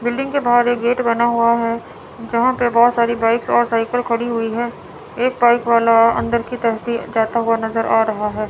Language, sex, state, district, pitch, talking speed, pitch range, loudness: Hindi, female, Chandigarh, Chandigarh, 235 Hz, 220 wpm, 230-240 Hz, -17 LUFS